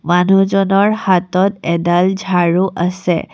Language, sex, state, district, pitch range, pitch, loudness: Assamese, female, Assam, Kamrup Metropolitan, 175-195 Hz, 185 Hz, -14 LUFS